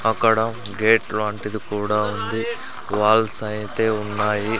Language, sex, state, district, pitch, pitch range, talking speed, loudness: Telugu, male, Andhra Pradesh, Sri Satya Sai, 110 Hz, 105-110 Hz, 105 wpm, -21 LUFS